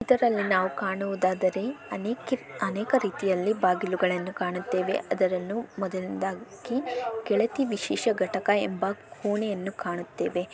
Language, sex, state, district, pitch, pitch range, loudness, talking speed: Kannada, female, Karnataka, Bellary, 195 Hz, 185-225 Hz, -28 LUFS, 85 wpm